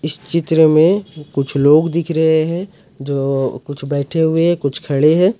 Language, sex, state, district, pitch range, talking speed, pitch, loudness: Hindi, male, Jharkhand, Ranchi, 140-165 Hz, 165 wpm, 155 Hz, -15 LUFS